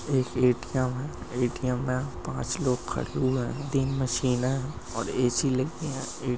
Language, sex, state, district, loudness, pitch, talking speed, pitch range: Hindi, male, Maharashtra, Aurangabad, -28 LUFS, 130 Hz, 170 wpm, 125-135 Hz